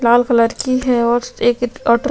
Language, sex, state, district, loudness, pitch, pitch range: Hindi, female, Chhattisgarh, Sukma, -16 LUFS, 240 Hz, 235-255 Hz